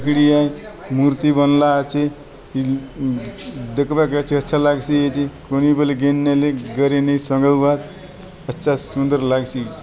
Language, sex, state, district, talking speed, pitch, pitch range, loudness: Halbi, male, Chhattisgarh, Bastar, 130 wpm, 145 Hz, 135-145 Hz, -18 LUFS